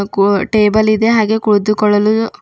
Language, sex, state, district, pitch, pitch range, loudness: Kannada, female, Karnataka, Bidar, 215 Hz, 205-220 Hz, -13 LUFS